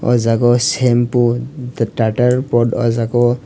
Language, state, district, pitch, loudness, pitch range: Kokborok, Tripura, West Tripura, 120 Hz, -15 LUFS, 120-125 Hz